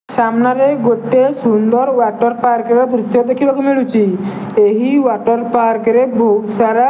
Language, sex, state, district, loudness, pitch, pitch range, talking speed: Odia, male, Odisha, Nuapada, -13 LUFS, 235 Hz, 225-255 Hz, 140 wpm